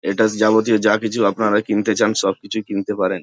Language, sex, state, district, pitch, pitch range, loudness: Bengali, male, West Bengal, Jhargram, 110 Hz, 105-110 Hz, -18 LUFS